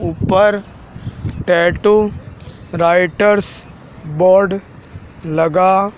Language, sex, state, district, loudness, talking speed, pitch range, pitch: Hindi, male, Madhya Pradesh, Dhar, -14 LUFS, 50 wpm, 165-205 Hz, 185 Hz